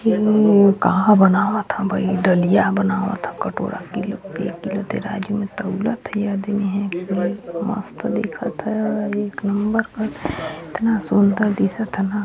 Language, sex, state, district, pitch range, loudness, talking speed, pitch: Chhattisgarhi, female, Chhattisgarh, Balrampur, 195-215 Hz, -20 LUFS, 115 wpm, 205 Hz